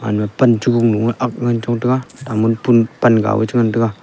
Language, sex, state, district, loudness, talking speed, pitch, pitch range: Wancho, male, Arunachal Pradesh, Longding, -16 LUFS, 180 wpm, 115 Hz, 110-120 Hz